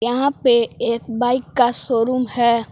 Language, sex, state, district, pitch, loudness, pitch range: Hindi, female, Jharkhand, Palamu, 240 Hz, -18 LUFS, 235-250 Hz